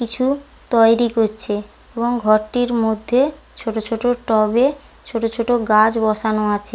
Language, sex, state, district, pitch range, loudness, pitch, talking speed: Bengali, female, West Bengal, Paschim Medinipur, 215-245 Hz, -17 LUFS, 230 Hz, 125 wpm